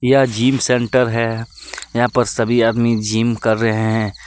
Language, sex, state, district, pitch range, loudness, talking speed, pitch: Hindi, male, Jharkhand, Deoghar, 110-125 Hz, -17 LUFS, 170 wpm, 115 Hz